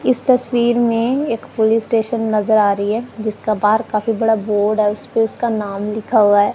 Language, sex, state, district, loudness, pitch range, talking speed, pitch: Hindi, female, Punjab, Kapurthala, -17 LUFS, 210-235 Hz, 200 wpm, 220 Hz